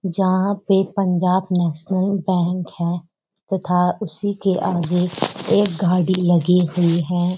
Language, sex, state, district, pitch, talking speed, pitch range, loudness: Hindi, female, Uttarakhand, Uttarkashi, 180 Hz, 120 wpm, 175-190 Hz, -19 LUFS